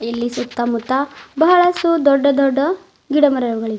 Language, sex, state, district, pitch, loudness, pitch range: Kannada, female, Karnataka, Bidar, 275 Hz, -16 LUFS, 240-320 Hz